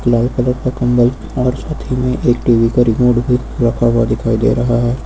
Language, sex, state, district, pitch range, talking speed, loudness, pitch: Hindi, male, Uttar Pradesh, Lucknow, 120-125 Hz, 225 wpm, -15 LUFS, 120 Hz